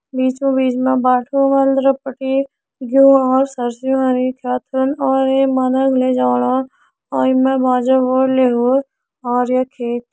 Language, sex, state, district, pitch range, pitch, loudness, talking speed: Hindi, female, Uttarakhand, Uttarkashi, 255-270 Hz, 260 Hz, -16 LUFS, 170 wpm